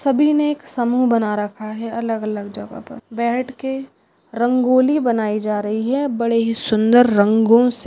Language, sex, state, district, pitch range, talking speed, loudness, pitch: Hindi, female, Rajasthan, Churu, 215-255 Hz, 170 wpm, -18 LUFS, 235 Hz